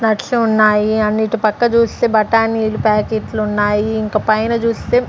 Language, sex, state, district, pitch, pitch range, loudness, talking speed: Telugu, female, Andhra Pradesh, Sri Satya Sai, 220 Hz, 215-230 Hz, -15 LUFS, 130 wpm